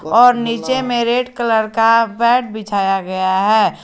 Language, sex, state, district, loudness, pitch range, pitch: Hindi, male, Jharkhand, Garhwa, -15 LUFS, 210-240 Hz, 230 Hz